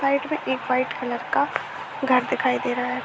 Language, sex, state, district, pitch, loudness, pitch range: Hindi, female, Chhattisgarh, Jashpur, 255 Hz, -24 LUFS, 250-270 Hz